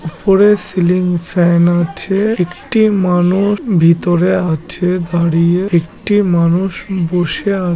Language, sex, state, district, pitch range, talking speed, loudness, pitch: Bengali, male, West Bengal, Kolkata, 170-195 Hz, 100 wpm, -13 LUFS, 180 Hz